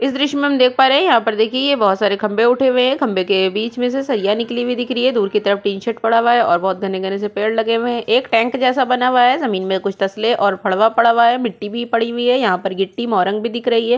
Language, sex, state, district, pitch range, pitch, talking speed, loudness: Hindi, female, Chhattisgarh, Sukma, 205-245 Hz, 230 Hz, 315 wpm, -16 LUFS